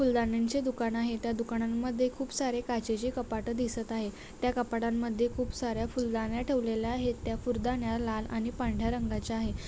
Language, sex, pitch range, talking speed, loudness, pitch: Marathi, female, 225-245 Hz, 155 wpm, -32 LUFS, 235 Hz